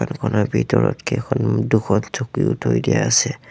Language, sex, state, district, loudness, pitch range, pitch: Assamese, male, Assam, Sonitpur, -19 LUFS, 105-125 Hz, 110 Hz